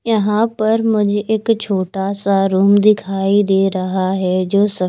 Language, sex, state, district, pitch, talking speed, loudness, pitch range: Hindi, female, Chandigarh, Chandigarh, 200 Hz, 160 wpm, -16 LUFS, 195-215 Hz